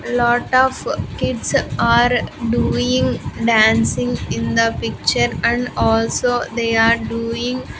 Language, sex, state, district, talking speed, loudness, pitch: English, female, Andhra Pradesh, Sri Satya Sai, 115 wpm, -17 LUFS, 225 Hz